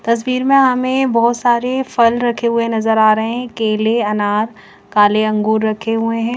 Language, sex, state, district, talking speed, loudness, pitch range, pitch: Hindi, female, Chandigarh, Chandigarh, 180 wpm, -15 LUFS, 215-240 Hz, 230 Hz